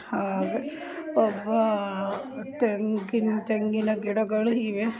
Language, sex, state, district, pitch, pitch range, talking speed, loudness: Kannada, female, Karnataka, Gulbarga, 220 Hz, 210-235 Hz, 70 wpm, -27 LUFS